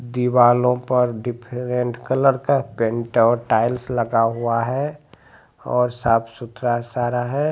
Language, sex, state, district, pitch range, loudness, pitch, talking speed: Hindi, male, Bihar, Jamui, 120-125 Hz, -20 LUFS, 120 Hz, 130 wpm